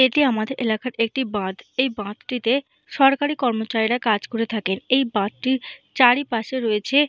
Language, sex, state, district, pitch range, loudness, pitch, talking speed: Bengali, female, Jharkhand, Jamtara, 220-260 Hz, -21 LUFS, 245 Hz, 145 wpm